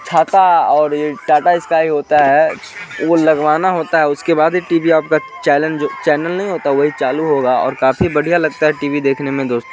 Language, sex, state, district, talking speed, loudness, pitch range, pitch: Hindi, male, Bihar, Sitamarhi, 195 wpm, -14 LUFS, 145-165 Hz, 155 Hz